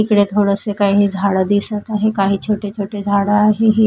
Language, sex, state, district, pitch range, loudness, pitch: Marathi, female, Maharashtra, Mumbai Suburban, 200-210 Hz, -16 LUFS, 205 Hz